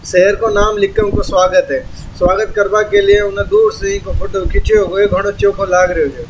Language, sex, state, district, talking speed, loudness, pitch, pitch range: Marwari, male, Rajasthan, Churu, 160 wpm, -13 LUFS, 205 Hz, 185-215 Hz